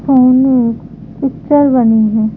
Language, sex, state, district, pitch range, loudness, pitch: Hindi, female, Madhya Pradesh, Bhopal, 220-265 Hz, -11 LUFS, 255 Hz